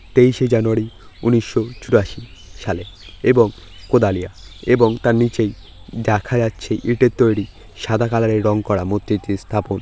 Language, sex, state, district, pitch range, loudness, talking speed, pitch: Bengali, male, West Bengal, North 24 Parganas, 100-120 Hz, -18 LUFS, 140 wpm, 110 Hz